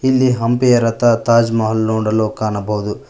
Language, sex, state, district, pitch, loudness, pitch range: Kannada, male, Karnataka, Koppal, 115 Hz, -15 LUFS, 110-120 Hz